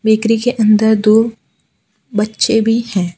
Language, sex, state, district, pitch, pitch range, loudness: Hindi, female, Gujarat, Valsad, 220 Hz, 215-225 Hz, -13 LUFS